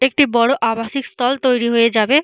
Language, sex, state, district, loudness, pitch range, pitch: Bengali, female, West Bengal, Purulia, -16 LUFS, 230-275 Hz, 250 Hz